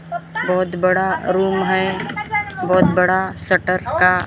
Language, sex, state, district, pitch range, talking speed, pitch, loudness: Hindi, male, Maharashtra, Gondia, 180-190 Hz, 110 wpm, 185 Hz, -16 LUFS